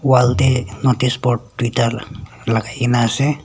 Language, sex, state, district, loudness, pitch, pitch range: Nagamese, male, Nagaland, Dimapur, -17 LUFS, 125 Hz, 115-130 Hz